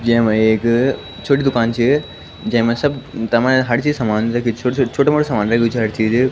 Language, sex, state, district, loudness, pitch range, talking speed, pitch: Garhwali, male, Uttarakhand, Tehri Garhwal, -16 LUFS, 115-130 Hz, 210 wpm, 120 Hz